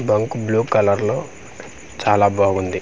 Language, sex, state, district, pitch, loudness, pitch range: Telugu, male, Andhra Pradesh, Manyam, 105 Hz, -18 LUFS, 100-110 Hz